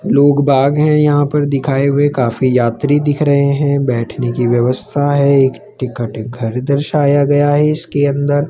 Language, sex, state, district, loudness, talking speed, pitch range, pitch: Hindi, male, Rajasthan, Jaipur, -14 LUFS, 170 wpm, 130-145 Hz, 140 Hz